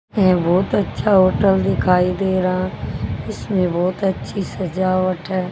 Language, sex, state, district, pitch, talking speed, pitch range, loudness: Hindi, female, Haryana, Charkhi Dadri, 185 Hz, 130 wpm, 180-190 Hz, -18 LUFS